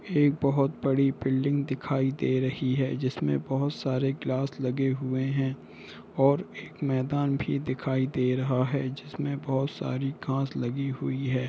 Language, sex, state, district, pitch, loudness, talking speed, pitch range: Hindi, male, Jharkhand, Jamtara, 135 Hz, -28 LUFS, 155 wpm, 130-140 Hz